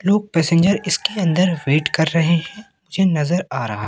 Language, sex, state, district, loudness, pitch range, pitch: Hindi, male, Madhya Pradesh, Katni, -18 LUFS, 160-190 Hz, 170 Hz